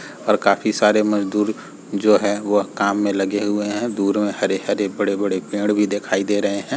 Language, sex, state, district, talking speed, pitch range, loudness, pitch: Hindi, male, Uttar Pradesh, Muzaffarnagar, 195 wpm, 100-105 Hz, -20 LUFS, 105 Hz